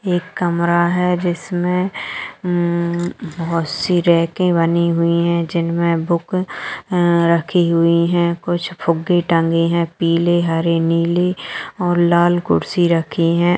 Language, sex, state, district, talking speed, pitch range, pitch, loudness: Magahi, female, Bihar, Gaya, 125 wpm, 170-175 Hz, 170 Hz, -17 LUFS